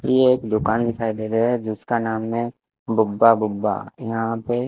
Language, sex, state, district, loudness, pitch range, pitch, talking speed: Hindi, male, Chandigarh, Chandigarh, -21 LUFS, 110-120 Hz, 115 Hz, 180 wpm